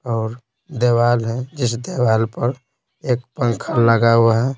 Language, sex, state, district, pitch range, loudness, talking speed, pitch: Hindi, male, Bihar, Patna, 115-125 Hz, -18 LUFS, 145 wpm, 120 Hz